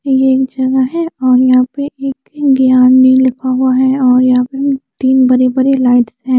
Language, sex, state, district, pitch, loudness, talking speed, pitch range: Hindi, female, Chandigarh, Chandigarh, 260 Hz, -11 LUFS, 185 wpm, 255-265 Hz